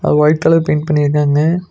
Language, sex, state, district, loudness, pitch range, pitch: Tamil, male, Tamil Nadu, Nilgiris, -13 LUFS, 150-160 Hz, 150 Hz